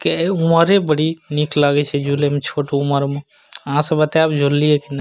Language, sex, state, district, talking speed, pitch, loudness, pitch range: Maithili, male, Bihar, Madhepura, 225 wpm, 150 Hz, -17 LUFS, 145-160 Hz